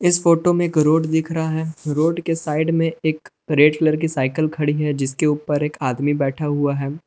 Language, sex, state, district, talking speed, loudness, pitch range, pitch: Hindi, male, Jharkhand, Palamu, 220 wpm, -19 LUFS, 145-160 Hz, 155 Hz